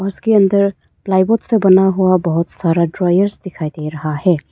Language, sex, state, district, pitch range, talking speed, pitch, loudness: Hindi, female, Arunachal Pradesh, Papum Pare, 165-195 Hz, 185 wpm, 185 Hz, -15 LUFS